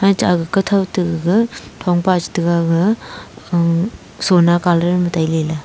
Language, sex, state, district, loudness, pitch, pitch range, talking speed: Wancho, female, Arunachal Pradesh, Longding, -16 LUFS, 175 Hz, 170-190 Hz, 140 wpm